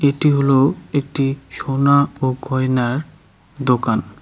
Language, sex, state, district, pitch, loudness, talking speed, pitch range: Bengali, male, West Bengal, Cooch Behar, 135 Hz, -18 LUFS, 100 wpm, 130-140 Hz